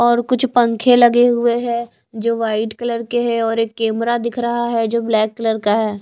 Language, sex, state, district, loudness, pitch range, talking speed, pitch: Hindi, female, Maharashtra, Mumbai Suburban, -17 LUFS, 225-240 Hz, 220 wpm, 235 Hz